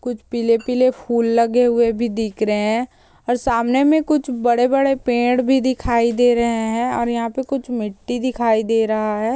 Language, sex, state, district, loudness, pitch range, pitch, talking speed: Hindi, female, Bihar, Jahanabad, -18 LUFS, 230-250 Hz, 240 Hz, 175 wpm